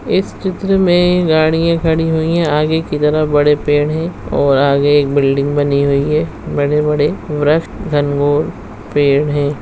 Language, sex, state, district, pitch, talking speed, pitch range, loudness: Hindi, female, Bihar, Madhepura, 150 Hz, 155 wpm, 145-160 Hz, -14 LUFS